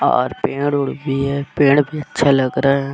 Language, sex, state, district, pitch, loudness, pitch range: Hindi, female, Bihar, Vaishali, 140 Hz, -17 LUFS, 140-145 Hz